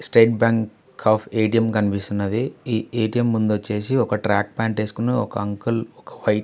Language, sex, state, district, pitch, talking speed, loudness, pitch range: Telugu, male, Andhra Pradesh, Visakhapatnam, 110 Hz, 140 wpm, -21 LUFS, 105-115 Hz